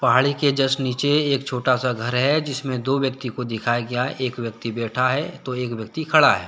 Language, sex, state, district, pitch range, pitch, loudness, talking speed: Hindi, male, Jharkhand, Deoghar, 125-140 Hz, 130 Hz, -22 LUFS, 240 wpm